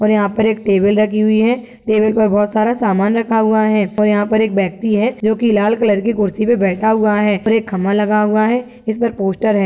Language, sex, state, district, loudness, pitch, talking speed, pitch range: Hindi, male, Uttar Pradesh, Gorakhpur, -15 LUFS, 215 Hz, 240 wpm, 205-220 Hz